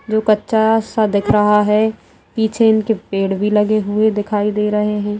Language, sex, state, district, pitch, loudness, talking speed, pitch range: Hindi, female, Bihar, Darbhanga, 210 Hz, -16 LUFS, 185 wpm, 210-220 Hz